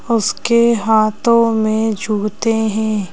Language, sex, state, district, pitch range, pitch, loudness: Hindi, female, Madhya Pradesh, Bhopal, 215-230 Hz, 220 Hz, -15 LUFS